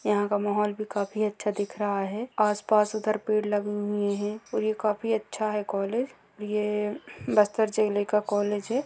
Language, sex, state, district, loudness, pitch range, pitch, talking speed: Hindi, female, Chhattisgarh, Bastar, -27 LUFS, 205-215 Hz, 210 Hz, 185 wpm